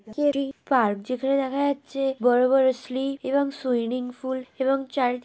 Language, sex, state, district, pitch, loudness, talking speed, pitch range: Bengali, female, West Bengal, Jhargram, 265 Hz, -24 LUFS, 160 wpm, 250-275 Hz